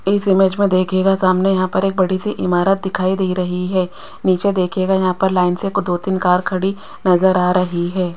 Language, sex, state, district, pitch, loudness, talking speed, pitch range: Hindi, female, Rajasthan, Jaipur, 185 Hz, -17 LUFS, 220 wpm, 180-195 Hz